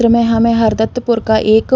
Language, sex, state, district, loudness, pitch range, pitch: Hindi, female, Uttar Pradesh, Varanasi, -13 LUFS, 220-235 Hz, 230 Hz